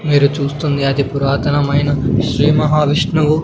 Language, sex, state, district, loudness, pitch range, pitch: Telugu, male, Andhra Pradesh, Sri Satya Sai, -15 LUFS, 140-150 Hz, 145 Hz